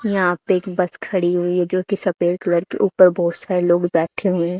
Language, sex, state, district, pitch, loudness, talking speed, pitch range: Hindi, female, Haryana, Charkhi Dadri, 180 Hz, -19 LUFS, 245 wpm, 175-185 Hz